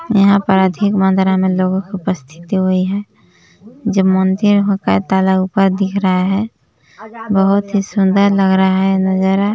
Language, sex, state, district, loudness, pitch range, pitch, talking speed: Hindi, male, Chhattisgarh, Balrampur, -14 LUFS, 190-200 Hz, 195 Hz, 155 wpm